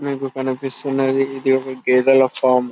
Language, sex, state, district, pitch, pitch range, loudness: Telugu, male, Telangana, Karimnagar, 135 Hz, 130-135 Hz, -18 LUFS